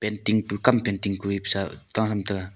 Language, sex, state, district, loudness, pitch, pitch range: Wancho, male, Arunachal Pradesh, Longding, -25 LUFS, 100 Hz, 100-105 Hz